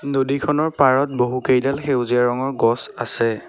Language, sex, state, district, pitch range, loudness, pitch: Assamese, male, Assam, Sonitpur, 125-140 Hz, -19 LUFS, 130 Hz